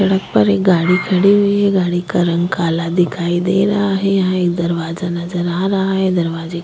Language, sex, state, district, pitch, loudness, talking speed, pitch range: Hindi, female, Maharashtra, Chandrapur, 180 Hz, -16 LUFS, 225 wpm, 170-190 Hz